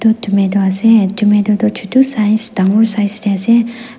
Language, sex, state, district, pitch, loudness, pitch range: Nagamese, female, Nagaland, Dimapur, 210 Hz, -12 LUFS, 200-225 Hz